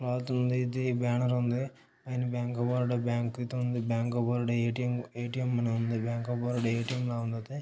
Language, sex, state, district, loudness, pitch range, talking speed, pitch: Telugu, male, Telangana, Nalgonda, -31 LUFS, 120-125 Hz, 175 wpm, 120 Hz